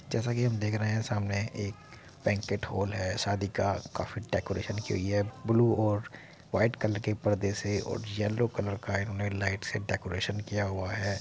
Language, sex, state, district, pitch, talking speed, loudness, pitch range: Hindi, male, Uttar Pradesh, Muzaffarnagar, 105 Hz, 185 wpm, -31 LUFS, 100-110 Hz